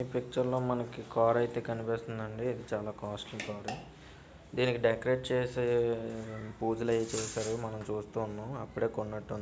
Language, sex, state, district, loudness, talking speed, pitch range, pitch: Telugu, male, Andhra Pradesh, Visakhapatnam, -34 LUFS, 125 wpm, 110-120 Hz, 115 Hz